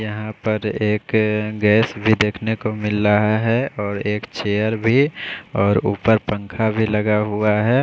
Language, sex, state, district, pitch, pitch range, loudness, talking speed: Hindi, male, Odisha, Khordha, 105 Hz, 105-110 Hz, -19 LUFS, 170 wpm